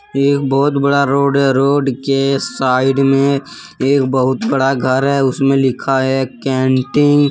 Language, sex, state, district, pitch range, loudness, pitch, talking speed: Hindi, male, Jharkhand, Deoghar, 130-140 Hz, -14 LUFS, 135 Hz, 155 wpm